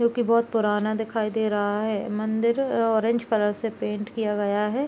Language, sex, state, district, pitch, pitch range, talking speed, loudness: Hindi, female, Bihar, Supaul, 220 Hz, 210-230 Hz, 195 wpm, -24 LUFS